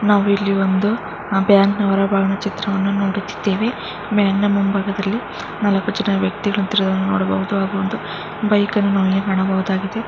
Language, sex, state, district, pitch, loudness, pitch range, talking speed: Kannada, female, Karnataka, Mysore, 200 Hz, -18 LUFS, 195-205 Hz, 75 wpm